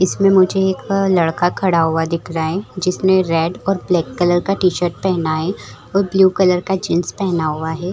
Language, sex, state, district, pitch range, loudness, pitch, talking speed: Hindi, female, Bihar, Madhepura, 170-190 Hz, -17 LUFS, 180 Hz, 195 wpm